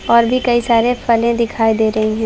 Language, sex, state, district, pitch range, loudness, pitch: Hindi, female, Uttar Pradesh, Varanasi, 220-240 Hz, -15 LUFS, 235 Hz